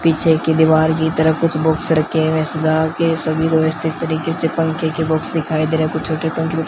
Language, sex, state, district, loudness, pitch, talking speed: Hindi, female, Rajasthan, Bikaner, -17 LUFS, 160 Hz, 235 wpm